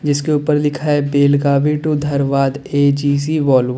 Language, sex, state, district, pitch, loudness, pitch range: Hindi, male, Uttar Pradesh, Lalitpur, 145 Hz, -16 LUFS, 140-150 Hz